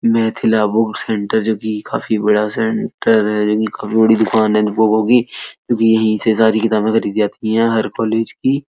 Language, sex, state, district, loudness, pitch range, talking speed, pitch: Hindi, male, Uttar Pradesh, Etah, -15 LUFS, 105-115 Hz, 180 wpm, 110 Hz